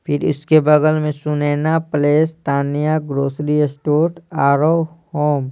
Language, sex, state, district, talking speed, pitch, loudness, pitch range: Hindi, male, Bihar, Patna, 130 wpm, 150 Hz, -17 LUFS, 145-155 Hz